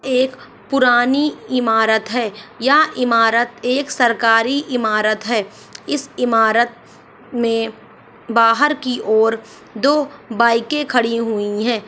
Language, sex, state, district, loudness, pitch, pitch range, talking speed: Hindi, female, Bihar, Saharsa, -17 LUFS, 235 Hz, 225-255 Hz, 105 wpm